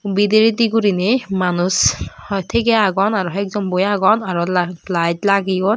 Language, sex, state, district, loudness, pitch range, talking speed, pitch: Chakma, female, Tripura, Dhalai, -17 LUFS, 185-210 Hz, 155 wpm, 195 Hz